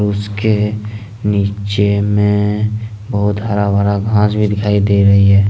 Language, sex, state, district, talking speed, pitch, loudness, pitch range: Hindi, male, Jharkhand, Ranchi, 130 wpm, 105 Hz, -14 LUFS, 100-105 Hz